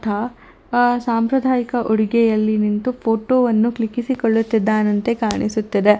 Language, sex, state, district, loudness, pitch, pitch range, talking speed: Kannada, female, Karnataka, Bangalore, -18 LUFS, 225 Hz, 215-245 Hz, 90 wpm